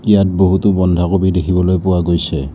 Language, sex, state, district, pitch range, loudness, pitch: Assamese, male, Assam, Kamrup Metropolitan, 90-95 Hz, -14 LUFS, 90 Hz